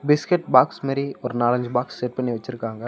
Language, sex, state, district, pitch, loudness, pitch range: Tamil, male, Tamil Nadu, Namakkal, 125 Hz, -22 LUFS, 120-140 Hz